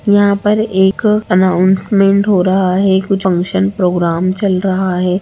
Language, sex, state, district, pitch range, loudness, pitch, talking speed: Hindi, female, Bihar, Samastipur, 185-200 Hz, -13 LUFS, 190 Hz, 150 wpm